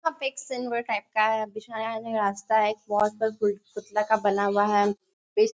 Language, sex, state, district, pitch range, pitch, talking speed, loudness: Hindi, female, Bihar, Sitamarhi, 210-230 Hz, 215 Hz, 205 wpm, -26 LUFS